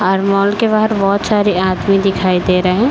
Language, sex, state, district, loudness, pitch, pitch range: Hindi, female, Uttar Pradesh, Varanasi, -14 LUFS, 195 Hz, 185-205 Hz